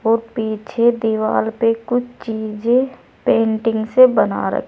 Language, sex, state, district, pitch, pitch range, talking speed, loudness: Hindi, female, Uttar Pradesh, Saharanpur, 225 Hz, 220-240 Hz, 115 wpm, -18 LUFS